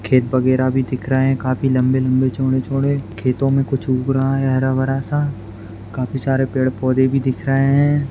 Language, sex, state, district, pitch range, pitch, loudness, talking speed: Hindi, male, Bihar, Madhepura, 130-135 Hz, 130 Hz, -18 LUFS, 180 wpm